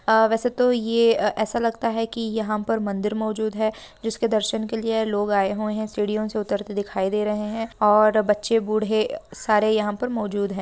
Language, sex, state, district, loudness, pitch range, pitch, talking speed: Hindi, female, Bihar, Bhagalpur, -23 LUFS, 210-225 Hz, 215 Hz, 210 wpm